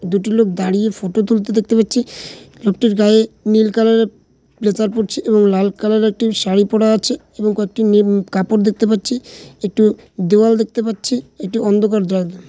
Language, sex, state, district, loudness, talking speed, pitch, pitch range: Bengali, male, West Bengal, Malda, -16 LUFS, 170 wpm, 215 Hz, 205-225 Hz